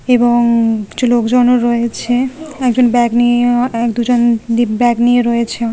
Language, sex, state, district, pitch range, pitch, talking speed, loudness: Bengali, female, West Bengal, Kolkata, 235-245 Hz, 240 Hz, 135 wpm, -13 LUFS